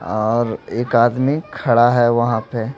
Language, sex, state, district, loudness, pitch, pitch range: Hindi, male, Odisha, Malkangiri, -17 LUFS, 120 Hz, 115-120 Hz